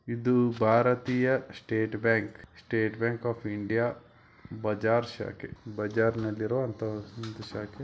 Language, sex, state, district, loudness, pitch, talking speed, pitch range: Kannada, male, Karnataka, Belgaum, -29 LUFS, 115 Hz, 105 wpm, 110-120 Hz